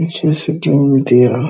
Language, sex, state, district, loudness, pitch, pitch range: Hindi, male, Bihar, Araria, -13 LUFS, 140 Hz, 135-155 Hz